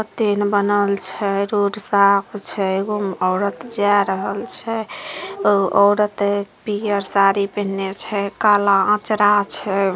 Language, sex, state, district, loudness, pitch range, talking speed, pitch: Maithili, female, Bihar, Samastipur, -18 LUFS, 195-205 Hz, 125 wpm, 200 Hz